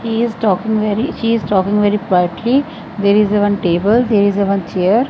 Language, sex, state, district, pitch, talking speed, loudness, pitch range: English, female, Punjab, Fazilka, 210 Hz, 225 wpm, -15 LUFS, 200-230 Hz